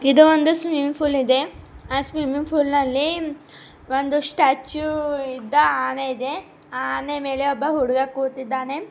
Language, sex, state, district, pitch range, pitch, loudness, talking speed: Kannada, female, Karnataka, Bidar, 265-300 Hz, 285 Hz, -21 LUFS, 130 wpm